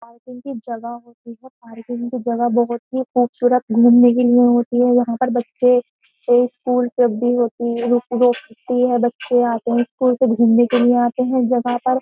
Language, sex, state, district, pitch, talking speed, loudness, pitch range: Hindi, female, Uttar Pradesh, Jyotiba Phule Nagar, 245 Hz, 175 wpm, -17 LUFS, 240-250 Hz